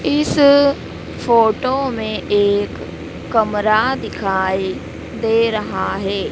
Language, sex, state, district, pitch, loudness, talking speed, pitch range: Hindi, female, Madhya Pradesh, Dhar, 220 Hz, -17 LUFS, 85 wpm, 205-260 Hz